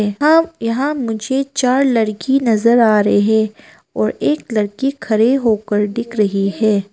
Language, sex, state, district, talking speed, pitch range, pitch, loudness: Hindi, female, Arunachal Pradesh, Papum Pare, 145 wpm, 210-270 Hz, 230 Hz, -16 LUFS